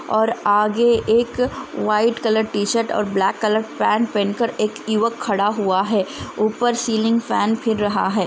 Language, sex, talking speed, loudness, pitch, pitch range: Hindi, female, 45 wpm, -19 LUFS, 220 Hz, 205-230 Hz